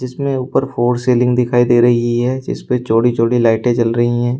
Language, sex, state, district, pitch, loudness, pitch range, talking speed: Hindi, male, Uttar Pradesh, Shamli, 120 Hz, -15 LUFS, 120-125 Hz, 205 wpm